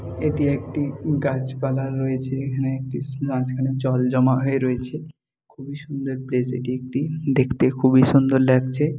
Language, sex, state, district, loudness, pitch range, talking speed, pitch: Bengali, male, West Bengal, Jhargram, -22 LUFS, 130-140 Hz, 135 wpm, 135 Hz